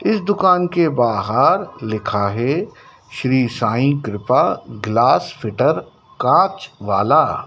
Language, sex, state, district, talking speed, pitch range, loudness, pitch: Hindi, male, Madhya Pradesh, Dhar, 105 wpm, 110-170 Hz, -17 LUFS, 130 Hz